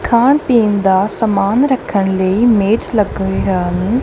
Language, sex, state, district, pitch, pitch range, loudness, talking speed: Punjabi, female, Punjab, Kapurthala, 210 Hz, 190-235 Hz, -14 LUFS, 150 wpm